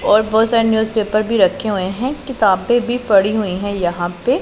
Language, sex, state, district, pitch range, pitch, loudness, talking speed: Hindi, female, Punjab, Pathankot, 195-230 Hz, 215 Hz, -16 LUFS, 205 wpm